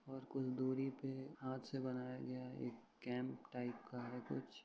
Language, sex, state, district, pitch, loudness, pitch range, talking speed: Hindi, male, Uttar Pradesh, Ghazipur, 130 Hz, -46 LUFS, 125-135 Hz, 180 wpm